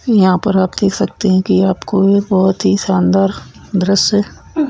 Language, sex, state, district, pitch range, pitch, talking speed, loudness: Hindi, female, Uttarakhand, Tehri Garhwal, 190-200 Hz, 195 Hz, 165 wpm, -14 LUFS